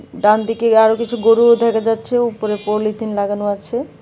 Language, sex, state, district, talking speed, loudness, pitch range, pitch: Bengali, female, Tripura, West Tripura, 150 wpm, -16 LUFS, 210-235 Hz, 225 Hz